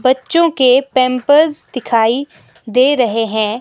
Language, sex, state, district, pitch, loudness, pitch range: Hindi, female, Himachal Pradesh, Shimla, 255 Hz, -13 LUFS, 225-275 Hz